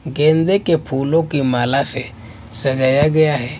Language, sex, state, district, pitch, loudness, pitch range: Hindi, male, Maharashtra, Washim, 140 Hz, -16 LUFS, 130-155 Hz